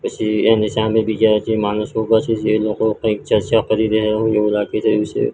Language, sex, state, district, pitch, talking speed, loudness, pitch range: Gujarati, male, Gujarat, Gandhinagar, 110 Hz, 215 wpm, -17 LUFS, 105-110 Hz